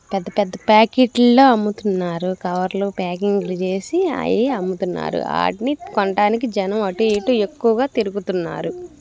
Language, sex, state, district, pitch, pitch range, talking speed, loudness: Telugu, female, Andhra Pradesh, Guntur, 210 Hz, 190-245 Hz, 115 wpm, -19 LUFS